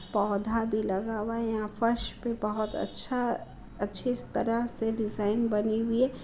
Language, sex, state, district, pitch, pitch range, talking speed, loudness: Hindi, female, Bihar, Muzaffarpur, 225 Hz, 210-235 Hz, 165 wpm, -30 LUFS